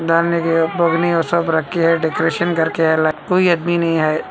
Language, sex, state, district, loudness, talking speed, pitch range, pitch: Hindi, male, Andhra Pradesh, Anantapur, -16 LUFS, 140 wpm, 160-170 Hz, 165 Hz